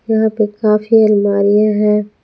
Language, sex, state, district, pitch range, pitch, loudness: Hindi, female, Jharkhand, Palamu, 210-220 Hz, 210 Hz, -13 LUFS